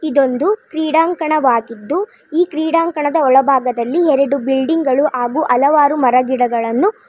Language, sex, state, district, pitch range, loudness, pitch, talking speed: Kannada, female, Karnataka, Bangalore, 260-320 Hz, -15 LUFS, 290 Hz, 125 wpm